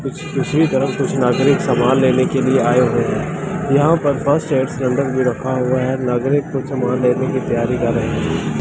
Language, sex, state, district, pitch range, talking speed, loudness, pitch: Hindi, male, Delhi, New Delhi, 125-145 Hz, 195 wpm, -17 LUFS, 135 Hz